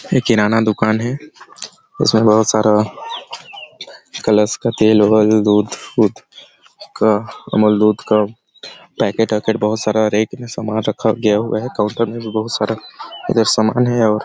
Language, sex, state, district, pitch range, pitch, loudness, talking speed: Hindi, male, Chhattisgarh, Sarguja, 105-110 Hz, 110 Hz, -16 LUFS, 160 wpm